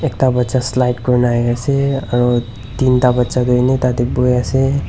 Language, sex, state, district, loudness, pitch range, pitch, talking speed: Nagamese, male, Nagaland, Dimapur, -15 LUFS, 120-130 Hz, 125 Hz, 185 wpm